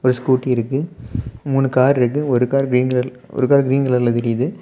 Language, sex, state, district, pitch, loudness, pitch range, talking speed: Tamil, male, Tamil Nadu, Kanyakumari, 130 Hz, -18 LUFS, 125-135 Hz, 195 wpm